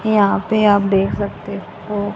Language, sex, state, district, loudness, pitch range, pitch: Hindi, female, Haryana, Jhajjar, -17 LUFS, 200-210 Hz, 205 Hz